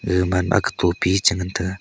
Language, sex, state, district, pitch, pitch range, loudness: Wancho, male, Arunachal Pradesh, Longding, 90 Hz, 90-95 Hz, -20 LUFS